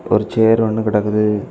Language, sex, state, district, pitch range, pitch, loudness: Tamil, male, Tamil Nadu, Kanyakumari, 105-110 Hz, 105 Hz, -16 LUFS